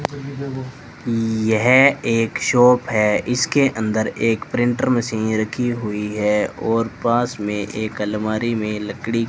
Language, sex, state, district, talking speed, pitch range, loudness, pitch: Hindi, male, Rajasthan, Bikaner, 130 wpm, 110-125 Hz, -19 LUFS, 115 Hz